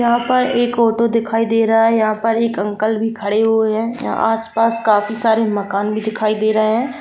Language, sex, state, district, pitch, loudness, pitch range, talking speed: Hindi, female, Jharkhand, Jamtara, 225 Hz, -16 LUFS, 215-230 Hz, 225 wpm